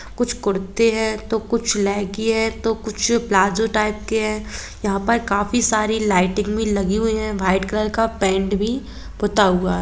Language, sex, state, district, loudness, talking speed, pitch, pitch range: Hindi, female, Jharkhand, Jamtara, -20 LUFS, 170 wpm, 215 Hz, 200-225 Hz